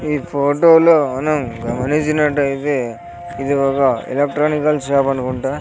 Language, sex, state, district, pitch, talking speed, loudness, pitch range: Telugu, male, Andhra Pradesh, Sri Satya Sai, 145 Hz, 95 wpm, -16 LUFS, 135-150 Hz